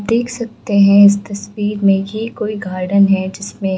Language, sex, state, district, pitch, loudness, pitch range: Hindi, female, Bihar, Gaya, 200 Hz, -15 LUFS, 195-215 Hz